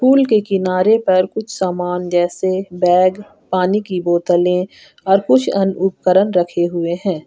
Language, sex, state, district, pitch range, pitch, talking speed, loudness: Hindi, female, Jharkhand, Garhwa, 180-195 Hz, 185 Hz, 150 wpm, -16 LUFS